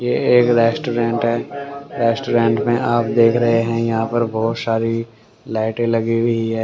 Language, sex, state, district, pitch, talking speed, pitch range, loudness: Hindi, male, Haryana, Rohtak, 115 Hz, 165 wpm, 115-120 Hz, -18 LUFS